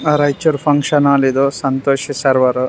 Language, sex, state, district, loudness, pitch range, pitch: Kannada, male, Karnataka, Raichur, -15 LUFS, 135-145 Hz, 140 Hz